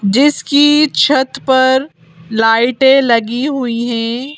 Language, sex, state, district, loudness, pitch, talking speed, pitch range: Hindi, female, Madhya Pradesh, Bhopal, -12 LUFS, 260 Hz, 95 wpm, 230-275 Hz